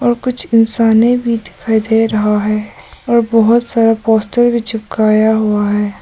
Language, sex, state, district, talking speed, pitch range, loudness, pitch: Hindi, female, Arunachal Pradesh, Papum Pare, 160 wpm, 215-235 Hz, -13 LUFS, 225 Hz